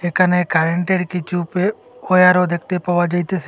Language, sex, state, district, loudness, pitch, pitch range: Bengali, male, Assam, Hailakandi, -17 LUFS, 180 Hz, 175-185 Hz